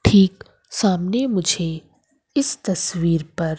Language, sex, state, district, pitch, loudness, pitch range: Hindi, female, Madhya Pradesh, Umaria, 185 Hz, -20 LUFS, 165-200 Hz